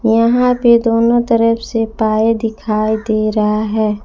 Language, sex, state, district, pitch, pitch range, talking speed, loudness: Hindi, female, Jharkhand, Palamu, 225 Hz, 215-230 Hz, 150 wpm, -14 LUFS